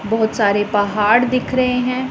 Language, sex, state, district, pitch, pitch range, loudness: Hindi, female, Punjab, Pathankot, 225 Hz, 205-250 Hz, -16 LUFS